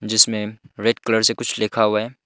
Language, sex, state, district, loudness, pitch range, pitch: Hindi, male, Arunachal Pradesh, Longding, -19 LUFS, 110-115 Hz, 110 Hz